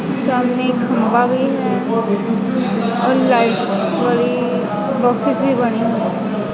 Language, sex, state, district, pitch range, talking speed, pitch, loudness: Hindi, female, Punjab, Pathankot, 225-250 Hz, 110 wpm, 240 Hz, -17 LUFS